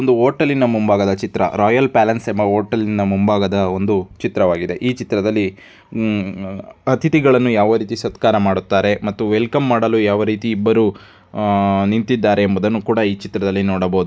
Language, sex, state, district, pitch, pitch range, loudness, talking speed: Kannada, male, Karnataka, Dharwad, 105 Hz, 100-115 Hz, -17 LUFS, 130 wpm